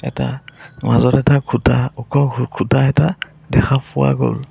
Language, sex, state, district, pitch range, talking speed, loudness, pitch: Assamese, male, Assam, Sonitpur, 95-140 Hz, 135 wpm, -16 LUFS, 125 Hz